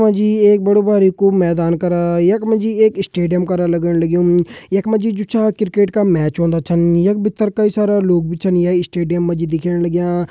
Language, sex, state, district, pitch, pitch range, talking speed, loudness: Hindi, male, Uttarakhand, Uttarkashi, 180 Hz, 170-210 Hz, 215 wpm, -15 LUFS